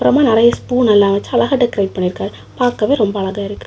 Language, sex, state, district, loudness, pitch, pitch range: Tamil, female, Tamil Nadu, Kanyakumari, -14 LUFS, 210 Hz, 200-245 Hz